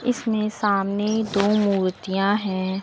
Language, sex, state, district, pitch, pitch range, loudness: Hindi, female, Uttar Pradesh, Lucknow, 205 Hz, 195-215 Hz, -22 LUFS